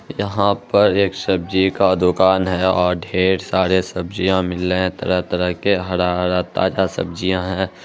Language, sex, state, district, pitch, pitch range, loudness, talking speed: Hindi, male, Bihar, Araria, 95 Hz, 90-95 Hz, -18 LUFS, 140 wpm